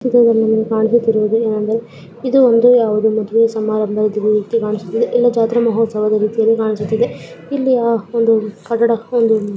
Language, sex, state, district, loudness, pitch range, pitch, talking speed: Kannada, female, Karnataka, Belgaum, -15 LUFS, 215-235 Hz, 225 Hz, 120 wpm